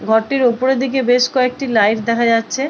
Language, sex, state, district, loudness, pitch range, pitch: Bengali, female, West Bengal, Purulia, -15 LUFS, 230-265 Hz, 245 Hz